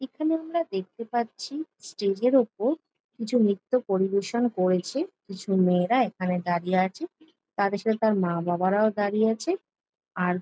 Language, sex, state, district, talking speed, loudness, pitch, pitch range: Bengali, female, West Bengal, Jhargram, 140 wpm, -26 LUFS, 215 Hz, 185-255 Hz